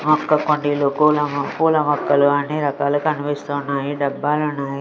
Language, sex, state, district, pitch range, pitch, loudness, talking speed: Telugu, female, Andhra Pradesh, Sri Satya Sai, 140-150 Hz, 145 Hz, -19 LUFS, 125 wpm